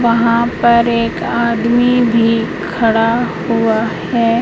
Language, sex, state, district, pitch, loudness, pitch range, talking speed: Hindi, female, Madhya Pradesh, Katni, 230 Hz, -14 LUFS, 230-235 Hz, 110 wpm